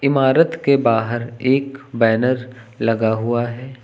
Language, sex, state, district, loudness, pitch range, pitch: Hindi, male, Uttar Pradesh, Lucknow, -18 LUFS, 115-135 Hz, 125 Hz